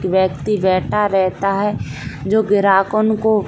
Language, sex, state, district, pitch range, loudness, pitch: Hindi, female, Bihar, Saran, 185-210 Hz, -17 LUFS, 195 Hz